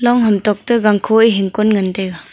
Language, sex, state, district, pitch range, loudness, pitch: Wancho, female, Arunachal Pradesh, Longding, 195-225 Hz, -14 LUFS, 210 Hz